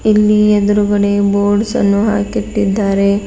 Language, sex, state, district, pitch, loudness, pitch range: Kannada, female, Karnataka, Bidar, 205 Hz, -13 LUFS, 200-210 Hz